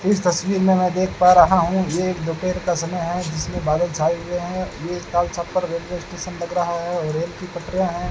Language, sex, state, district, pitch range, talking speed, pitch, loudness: Hindi, male, Rajasthan, Bikaner, 170-180 Hz, 220 wpm, 175 Hz, -21 LUFS